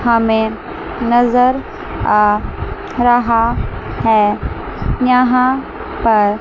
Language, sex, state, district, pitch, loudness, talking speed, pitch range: Hindi, female, Chandigarh, Chandigarh, 235 Hz, -15 LUFS, 65 wpm, 220-250 Hz